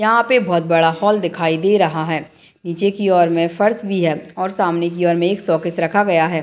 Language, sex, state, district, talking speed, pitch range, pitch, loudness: Hindi, female, Bihar, Madhepura, 240 wpm, 165-200 Hz, 175 Hz, -17 LUFS